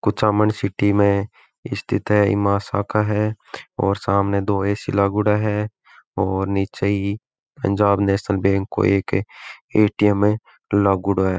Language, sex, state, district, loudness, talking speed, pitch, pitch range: Marwari, male, Rajasthan, Nagaur, -20 LUFS, 135 wpm, 100 Hz, 100-105 Hz